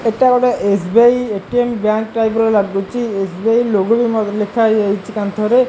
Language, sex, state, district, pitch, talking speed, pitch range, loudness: Odia, male, Odisha, Khordha, 220 Hz, 170 wpm, 205-240 Hz, -15 LUFS